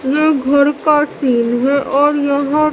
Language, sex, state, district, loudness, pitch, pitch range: Hindi, female, Bihar, Katihar, -14 LUFS, 285 Hz, 270-295 Hz